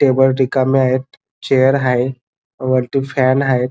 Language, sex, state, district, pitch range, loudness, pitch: Marathi, male, Maharashtra, Dhule, 130-135 Hz, -16 LUFS, 130 Hz